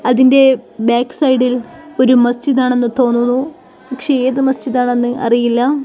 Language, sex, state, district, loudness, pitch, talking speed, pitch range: Malayalam, female, Kerala, Kozhikode, -13 LUFS, 255 Hz, 125 wpm, 245-265 Hz